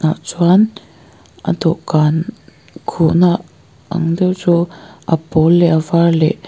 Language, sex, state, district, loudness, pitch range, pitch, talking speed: Mizo, female, Mizoram, Aizawl, -15 LUFS, 160-180 Hz, 170 Hz, 130 wpm